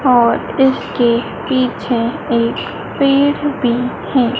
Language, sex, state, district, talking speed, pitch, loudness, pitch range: Hindi, female, Madhya Pradesh, Dhar, 95 wpm, 250 Hz, -16 LUFS, 235-275 Hz